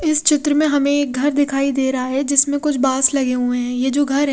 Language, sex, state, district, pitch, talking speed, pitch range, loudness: Hindi, female, Odisha, Khordha, 280 Hz, 265 wpm, 265-290 Hz, -17 LUFS